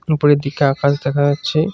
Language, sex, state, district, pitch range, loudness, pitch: Bengali, male, West Bengal, Cooch Behar, 140-155 Hz, -16 LUFS, 145 Hz